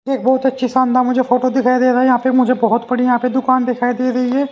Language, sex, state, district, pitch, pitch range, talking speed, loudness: Hindi, male, Haryana, Jhajjar, 255 Hz, 250-260 Hz, 265 wpm, -15 LUFS